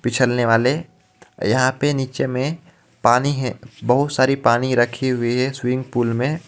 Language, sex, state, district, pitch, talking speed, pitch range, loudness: Hindi, male, Jharkhand, Ranchi, 130 Hz, 155 wpm, 120-135 Hz, -19 LUFS